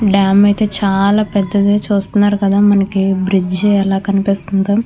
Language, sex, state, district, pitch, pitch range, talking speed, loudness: Telugu, female, Andhra Pradesh, Chittoor, 200 Hz, 195-205 Hz, 110 wpm, -13 LUFS